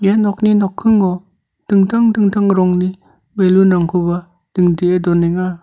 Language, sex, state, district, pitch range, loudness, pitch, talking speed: Garo, male, Meghalaya, North Garo Hills, 180-205 Hz, -14 LUFS, 185 Hz, 95 wpm